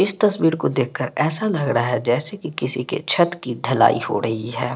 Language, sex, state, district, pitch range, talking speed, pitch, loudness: Hindi, male, Bihar, Patna, 125-175 Hz, 225 wpm, 140 Hz, -20 LUFS